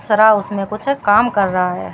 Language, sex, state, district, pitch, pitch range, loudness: Hindi, female, Rajasthan, Bikaner, 205 Hz, 195-220 Hz, -15 LUFS